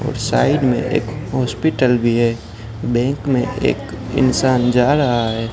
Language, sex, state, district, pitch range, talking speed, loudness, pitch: Hindi, male, Gujarat, Gandhinagar, 115-135 Hz, 150 wpm, -17 LUFS, 125 Hz